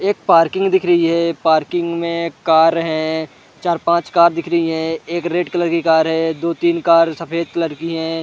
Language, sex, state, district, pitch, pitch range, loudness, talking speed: Hindi, male, Chhattisgarh, Rajnandgaon, 170 Hz, 160-170 Hz, -16 LUFS, 195 wpm